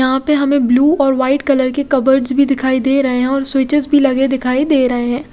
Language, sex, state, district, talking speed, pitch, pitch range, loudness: Hindi, female, Odisha, Khordha, 245 wpm, 270 Hz, 260-280 Hz, -14 LUFS